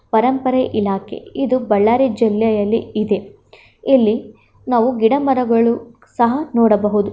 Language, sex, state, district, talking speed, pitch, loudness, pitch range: Kannada, female, Karnataka, Bellary, 100 wpm, 230 Hz, -16 LUFS, 215-255 Hz